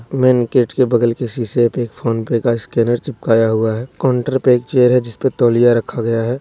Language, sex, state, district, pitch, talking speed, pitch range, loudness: Hindi, male, Jharkhand, Deoghar, 120 Hz, 225 wpm, 115-125 Hz, -16 LUFS